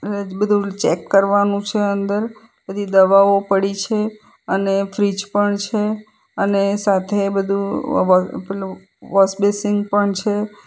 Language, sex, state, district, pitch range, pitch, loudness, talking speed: Gujarati, female, Gujarat, Valsad, 195-205 Hz, 200 Hz, -18 LUFS, 110 wpm